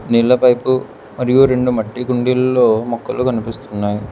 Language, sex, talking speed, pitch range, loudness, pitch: Telugu, male, 115 wpm, 115-125 Hz, -16 LUFS, 125 Hz